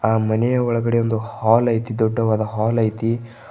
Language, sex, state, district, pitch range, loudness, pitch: Kannada, male, Karnataka, Bidar, 110-115 Hz, -20 LUFS, 115 Hz